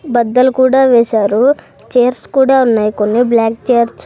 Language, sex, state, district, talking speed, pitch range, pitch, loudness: Telugu, female, Andhra Pradesh, Sri Satya Sai, 145 wpm, 225-260 Hz, 245 Hz, -12 LUFS